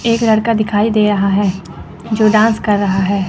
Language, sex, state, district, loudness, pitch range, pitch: Hindi, female, Chandigarh, Chandigarh, -14 LUFS, 200-220 Hz, 210 Hz